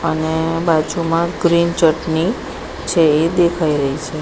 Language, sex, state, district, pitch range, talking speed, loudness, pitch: Gujarati, female, Gujarat, Gandhinagar, 155-170 Hz, 130 wpm, -17 LUFS, 165 Hz